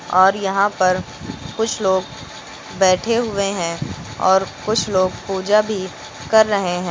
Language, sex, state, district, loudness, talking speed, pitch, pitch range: Hindi, female, Uttar Pradesh, Lucknow, -18 LUFS, 140 wpm, 190 Hz, 185-205 Hz